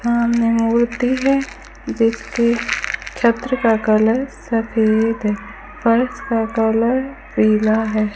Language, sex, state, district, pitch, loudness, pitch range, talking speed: Hindi, female, Rajasthan, Bikaner, 230 Hz, -18 LUFS, 220-240 Hz, 95 wpm